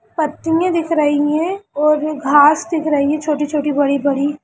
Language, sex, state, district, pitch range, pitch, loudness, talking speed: Hindi, female, Bihar, Sitamarhi, 290-320 Hz, 300 Hz, -16 LUFS, 175 wpm